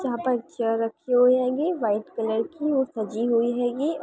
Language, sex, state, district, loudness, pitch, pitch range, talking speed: Hindi, female, Uttar Pradesh, Varanasi, -24 LUFS, 245 Hz, 225-260 Hz, 195 wpm